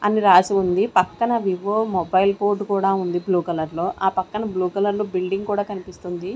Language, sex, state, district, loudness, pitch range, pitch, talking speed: Telugu, female, Andhra Pradesh, Sri Satya Sai, -21 LUFS, 180-205 Hz, 195 Hz, 190 wpm